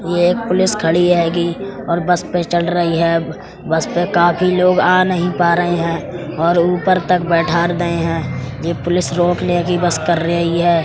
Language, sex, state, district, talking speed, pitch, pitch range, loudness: Hindi, female, Uttar Pradesh, Etah, 180 wpm, 175 Hz, 170-180 Hz, -16 LUFS